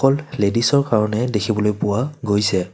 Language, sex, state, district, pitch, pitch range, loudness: Assamese, male, Assam, Kamrup Metropolitan, 110 Hz, 105-135 Hz, -19 LUFS